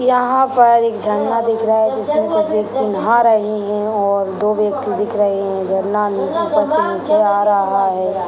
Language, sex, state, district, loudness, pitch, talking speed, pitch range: Hindi, male, Bihar, Purnia, -16 LUFS, 210 Hz, 195 wpm, 200-245 Hz